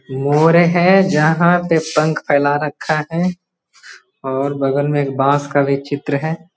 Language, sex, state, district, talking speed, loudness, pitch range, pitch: Hindi, male, Bihar, Muzaffarpur, 155 wpm, -16 LUFS, 140-170 Hz, 150 Hz